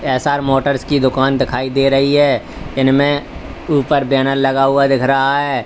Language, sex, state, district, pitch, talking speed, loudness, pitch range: Hindi, male, Uttar Pradesh, Lalitpur, 135 Hz, 170 wpm, -15 LUFS, 135-140 Hz